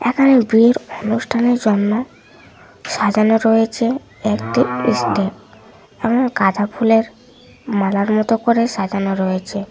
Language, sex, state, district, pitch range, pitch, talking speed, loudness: Bengali, female, West Bengal, Malda, 205-235 Hz, 225 Hz, 100 wpm, -17 LUFS